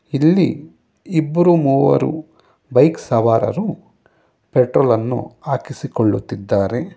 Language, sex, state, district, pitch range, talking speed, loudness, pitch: Kannada, male, Karnataka, Bangalore, 115-165 Hz, 70 wpm, -17 LUFS, 140 Hz